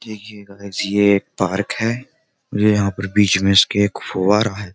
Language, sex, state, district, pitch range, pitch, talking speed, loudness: Hindi, male, Uttar Pradesh, Jyotiba Phule Nagar, 100-105 Hz, 100 Hz, 190 wpm, -17 LUFS